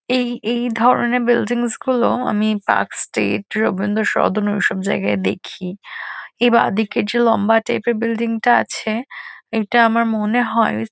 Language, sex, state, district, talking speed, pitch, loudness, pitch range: Bengali, female, West Bengal, Kolkata, 150 wpm, 230 Hz, -18 LUFS, 210-240 Hz